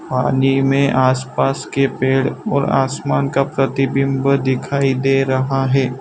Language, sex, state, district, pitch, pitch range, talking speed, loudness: Hindi, male, Gujarat, Valsad, 135 Hz, 130-135 Hz, 130 wpm, -17 LUFS